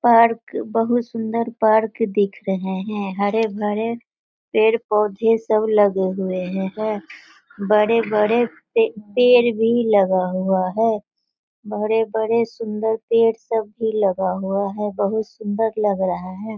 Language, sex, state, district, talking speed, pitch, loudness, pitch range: Hindi, female, Bihar, Sitamarhi, 135 wpm, 215 Hz, -20 LUFS, 200-225 Hz